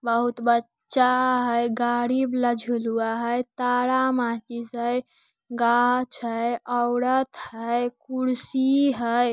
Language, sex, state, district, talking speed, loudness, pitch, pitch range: Hindi, female, Bihar, Lakhisarai, 105 wpm, -24 LUFS, 245 Hz, 235-255 Hz